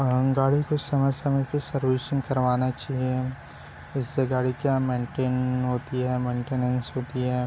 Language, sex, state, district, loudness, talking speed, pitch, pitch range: Hindi, male, Chhattisgarh, Bilaspur, -26 LUFS, 135 wpm, 130 Hz, 125-135 Hz